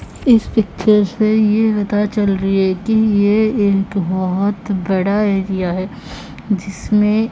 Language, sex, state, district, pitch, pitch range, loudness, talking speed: Hindi, female, Odisha, Khordha, 205 Hz, 195-215 Hz, -16 LUFS, 130 wpm